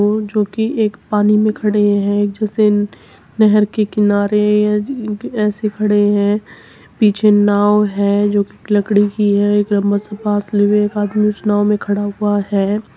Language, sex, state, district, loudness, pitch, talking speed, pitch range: Hindi, female, Uttar Pradesh, Muzaffarnagar, -15 LUFS, 210 Hz, 155 wpm, 205-210 Hz